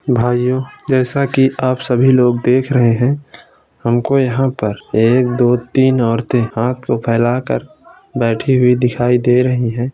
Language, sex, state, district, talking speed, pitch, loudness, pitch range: Hindi, male, Uttar Pradesh, Ghazipur, 150 wpm, 125 Hz, -15 LUFS, 120-130 Hz